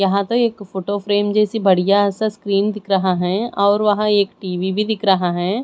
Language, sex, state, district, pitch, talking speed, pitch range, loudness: Hindi, female, Chhattisgarh, Raipur, 200 Hz, 210 wpm, 190-210 Hz, -18 LUFS